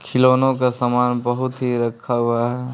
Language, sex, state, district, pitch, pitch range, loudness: Hindi, male, Bihar, Patna, 125 Hz, 120-125 Hz, -19 LUFS